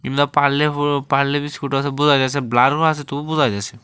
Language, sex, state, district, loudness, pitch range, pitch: Bengali, male, Tripura, West Tripura, -18 LUFS, 135-145 Hz, 145 Hz